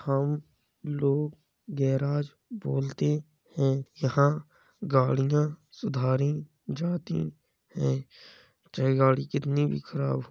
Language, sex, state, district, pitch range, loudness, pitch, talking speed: Hindi, male, Uttar Pradesh, Jalaun, 135-150 Hz, -28 LUFS, 140 Hz, 95 wpm